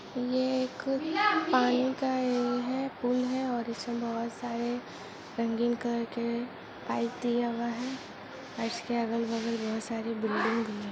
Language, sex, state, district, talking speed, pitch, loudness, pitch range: Hindi, female, Jharkhand, Jamtara, 155 wpm, 240 Hz, -31 LUFS, 230-255 Hz